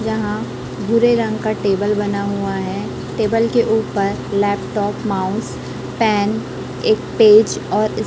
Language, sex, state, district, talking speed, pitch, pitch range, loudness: Hindi, female, Chhattisgarh, Raipur, 125 wpm, 210 Hz, 200-220 Hz, -18 LUFS